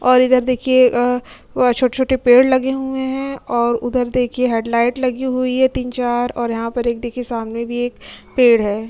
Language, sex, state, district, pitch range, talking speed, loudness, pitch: Hindi, female, Uttar Pradesh, Jyotiba Phule Nagar, 240-255 Hz, 180 wpm, -17 LUFS, 250 Hz